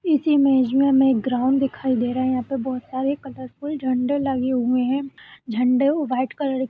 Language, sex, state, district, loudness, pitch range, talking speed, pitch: Hindi, female, Uttar Pradesh, Budaun, -21 LUFS, 255-275 Hz, 205 wpm, 260 Hz